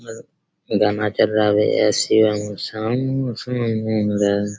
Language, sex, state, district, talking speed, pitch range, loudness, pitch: Hindi, male, Chhattisgarh, Raigarh, 50 wpm, 105-120 Hz, -19 LUFS, 110 Hz